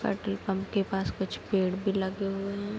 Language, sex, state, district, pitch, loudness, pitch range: Hindi, female, Bihar, Kishanganj, 195 Hz, -31 LUFS, 195-200 Hz